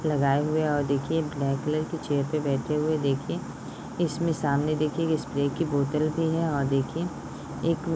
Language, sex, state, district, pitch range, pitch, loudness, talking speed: Hindi, female, Uttar Pradesh, Ghazipur, 140-160 Hz, 150 Hz, -27 LUFS, 195 wpm